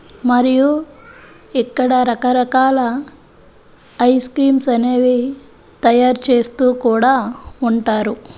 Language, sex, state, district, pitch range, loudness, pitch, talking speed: Telugu, female, Andhra Pradesh, Chittoor, 240-265 Hz, -15 LUFS, 250 Hz, 70 wpm